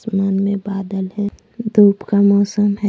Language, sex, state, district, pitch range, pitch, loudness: Hindi, female, Jharkhand, Deoghar, 195-205 Hz, 200 Hz, -17 LUFS